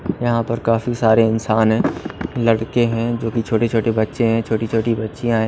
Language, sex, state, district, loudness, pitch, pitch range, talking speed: Hindi, male, Odisha, Nuapada, -18 LUFS, 115 Hz, 110-115 Hz, 195 wpm